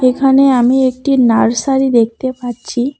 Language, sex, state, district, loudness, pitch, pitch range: Bengali, female, West Bengal, Cooch Behar, -12 LUFS, 255 Hz, 240-270 Hz